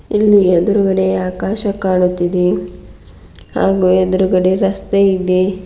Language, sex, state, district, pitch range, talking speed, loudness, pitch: Kannada, female, Karnataka, Bidar, 175-195 Hz, 85 wpm, -14 LUFS, 185 Hz